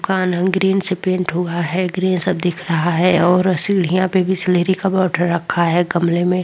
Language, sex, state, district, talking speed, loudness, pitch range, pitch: Hindi, female, Goa, North and South Goa, 195 wpm, -17 LUFS, 175-185 Hz, 180 Hz